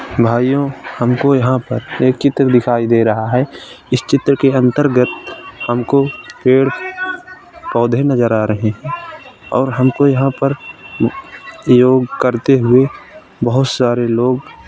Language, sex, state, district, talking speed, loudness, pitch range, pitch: Hindi, male, Uttar Pradesh, Ghazipur, 130 wpm, -14 LUFS, 120-140 Hz, 130 Hz